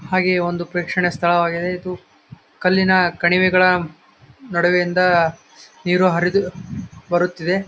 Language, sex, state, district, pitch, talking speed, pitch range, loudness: Kannada, male, Karnataka, Gulbarga, 180 Hz, 95 wpm, 175-185 Hz, -18 LUFS